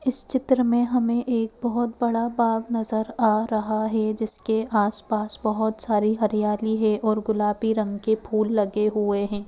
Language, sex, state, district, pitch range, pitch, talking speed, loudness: Hindi, female, Madhya Pradesh, Bhopal, 215-230 Hz, 220 Hz, 165 wpm, -22 LUFS